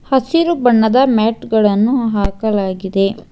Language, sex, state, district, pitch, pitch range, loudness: Kannada, female, Karnataka, Bangalore, 220 Hz, 200-255 Hz, -14 LUFS